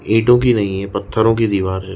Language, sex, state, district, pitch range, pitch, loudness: Hindi, male, Bihar, Jahanabad, 95-115 Hz, 105 Hz, -16 LUFS